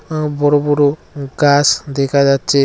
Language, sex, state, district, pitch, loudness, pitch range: Bengali, male, West Bengal, Cooch Behar, 145 Hz, -14 LUFS, 140-145 Hz